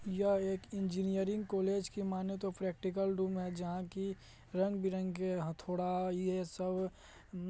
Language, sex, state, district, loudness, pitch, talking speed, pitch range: Hindi, male, Bihar, Madhepura, -37 LUFS, 190 Hz, 135 wpm, 185-195 Hz